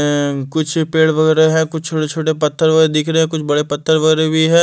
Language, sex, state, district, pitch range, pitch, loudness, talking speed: Hindi, male, Delhi, New Delhi, 150-160 Hz, 160 Hz, -15 LUFS, 220 wpm